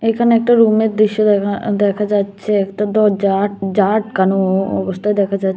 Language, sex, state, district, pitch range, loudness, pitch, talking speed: Bengali, female, Tripura, West Tripura, 195-215 Hz, -15 LUFS, 205 Hz, 150 wpm